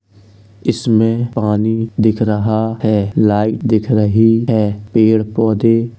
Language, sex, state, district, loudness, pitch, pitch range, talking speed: Hindi, male, Uttar Pradesh, Jalaun, -14 LUFS, 110 Hz, 105-115 Hz, 110 wpm